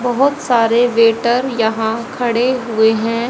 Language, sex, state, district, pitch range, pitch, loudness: Hindi, female, Haryana, Jhajjar, 225-245 Hz, 235 Hz, -15 LUFS